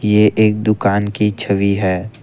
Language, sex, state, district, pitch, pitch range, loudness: Hindi, male, Assam, Kamrup Metropolitan, 105 Hz, 100-105 Hz, -16 LUFS